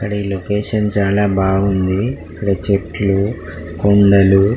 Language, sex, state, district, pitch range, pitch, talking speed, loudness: Telugu, male, Telangana, Karimnagar, 95-105 Hz, 100 Hz, 120 wpm, -16 LUFS